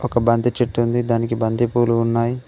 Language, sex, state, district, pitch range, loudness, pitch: Telugu, male, Telangana, Mahabubabad, 115-120 Hz, -19 LUFS, 120 Hz